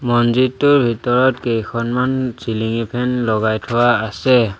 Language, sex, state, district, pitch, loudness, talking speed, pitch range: Assamese, male, Assam, Sonitpur, 120 Hz, -17 LUFS, 105 wpm, 115-125 Hz